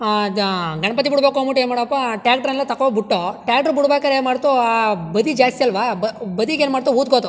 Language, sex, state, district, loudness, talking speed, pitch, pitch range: Kannada, male, Karnataka, Chamarajanagar, -18 LUFS, 180 wpm, 250 Hz, 220-275 Hz